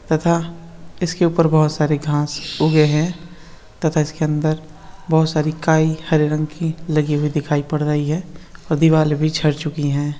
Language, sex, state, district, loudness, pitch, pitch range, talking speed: Hindi, male, Uttar Pradesh, Hamirpur, -18 LUFS, 155 Hz, 150-165 Hz, 170 wpm